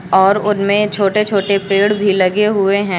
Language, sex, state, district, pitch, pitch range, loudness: Hindi, female, Uttar Pradesh, Lucknow, 200 Hz, 195-210 Hz, -14 LUFS